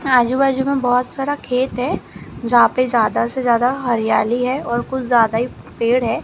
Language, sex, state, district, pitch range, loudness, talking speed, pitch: Hindi, female, Maharashtra, Gondia, 235-260 Hz, -18 LUFS, 190 wpm, 250 Hz